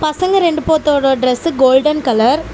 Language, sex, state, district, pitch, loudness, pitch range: Tamil, female, Tamil Nadu, Namakkal, 300 Hz, -13 LUFS, 260-320 Hz